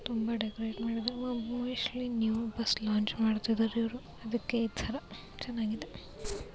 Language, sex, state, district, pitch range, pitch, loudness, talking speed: Kannada, female, Karnataka, Dharwad, 220-240 Hz, 230 Hz, -34 LUFS, 130 wpm